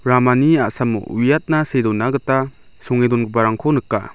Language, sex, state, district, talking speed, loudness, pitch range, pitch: Garo, male, Meghalaya, South Garo Hills, 130 wpm, -17 LUFS, 115-140 Hz, 125 Hz